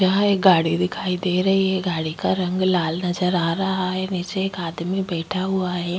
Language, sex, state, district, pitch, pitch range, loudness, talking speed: Hindi, female, Uttar Pradesh, Jyotiba Phule Nagar, 185 Hz, 175-190 Hz, -21 LUFS, 210 wpm